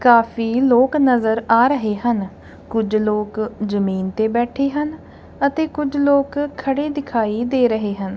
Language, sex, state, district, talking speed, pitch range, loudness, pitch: Punjabi, female, Punjab, Kapurthala, 145 wpm, 215-275 Hz, -19 LUFS, 240 Hz